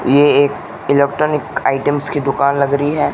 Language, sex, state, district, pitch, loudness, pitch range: Hindi, male, Rajasthan, Bikaner, 140 Hz, -15 LUFS, 140-145 Hz